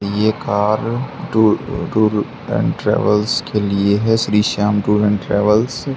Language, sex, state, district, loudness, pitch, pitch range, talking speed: Hindi, male, Haryana, Charkhi Dadri, -17 LUFS, 105 Hz, 105-115 Hz, 150 wpm